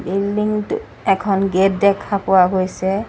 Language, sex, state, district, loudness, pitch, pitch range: Assamese, female, Assam, Sonitpur, -17 LUFS, 195 Hz, 190-200 Hz